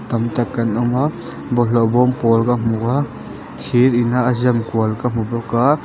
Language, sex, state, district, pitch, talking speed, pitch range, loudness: Mizo, male, Mizoram, Aizawl, 120 Hz, 215 wpm, 115-125 Hz, -17 LUFS